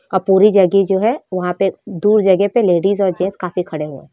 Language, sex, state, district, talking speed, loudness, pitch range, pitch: Hindi, female, Jharkhand, Jamtara, 260 wpm, -15 LUFS, 180-200 Hz, 190 Hz